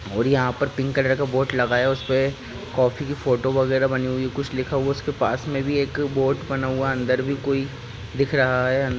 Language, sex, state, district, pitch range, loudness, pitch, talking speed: Hindi, male, Maharashtra, Pune, 130-140 Hz, -22 LUFS, 135 Hz, 225 wpm